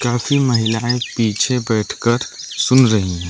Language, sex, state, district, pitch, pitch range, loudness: Hindi, male, Arunachal Pradesh, Lower Dibang Valley, 120 Hz, 110-125 Hz, -17 LUFS